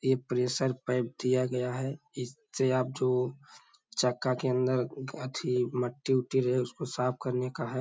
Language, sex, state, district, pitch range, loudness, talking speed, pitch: Hindi, male, Uttar Pradesh, Hamirpur, 125-130 Hz, -31 LUFS, 170 wpm, 130 Hz